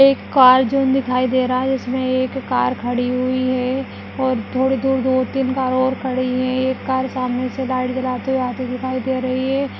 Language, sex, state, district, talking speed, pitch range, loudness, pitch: Hindi, female, Bihar, Madhepura, 215 wpm, 255-260 Hz, -19 LUFS, 255 Hz